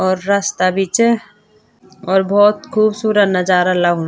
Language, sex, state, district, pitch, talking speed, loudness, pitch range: Garhwali, female, Uttarakhand, Tehri Garhwal, 200 Hz, 130 wpm, -15 LUFS, 185-215 Hz